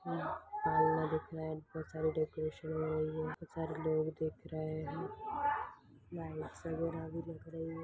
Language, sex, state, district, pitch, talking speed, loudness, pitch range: Hindi, female, Chhattisgarh, Rajnandgaon, 160 Hz, 105 wpm, -38 LUFS, 155-165 Hz